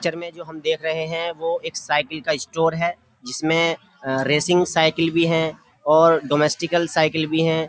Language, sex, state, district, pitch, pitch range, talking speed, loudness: Hindi, male, Uttar Pradesh, Jyotiba Phule Nagar, 160 Hz, 155-165 Hz, 170 wpm, -20 LUFS